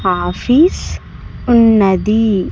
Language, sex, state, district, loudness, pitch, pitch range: Telugu, male, Andhra Pradesh, Sri Satya Sai, -12 LUFS, 215 Hz, 190-235 Hz